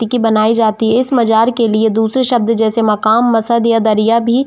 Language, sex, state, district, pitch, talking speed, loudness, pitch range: Hindi, female, Jharkhand, Jamtara, 230 Hz, 240 wpm, -12 LUFS, 220-235 Hz